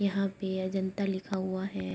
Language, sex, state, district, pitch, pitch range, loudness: Hindi, female, Uttar Pradesh, Budaun, 190 Hz, 190-195 Hz, -32 LUFS